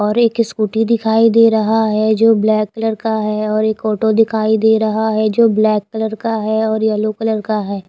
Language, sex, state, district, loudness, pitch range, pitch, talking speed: Hindi, female, Himachal Pradesh, Shimla, -15 LUFS, 215-225 Hz, 220 Hz, 220 wpm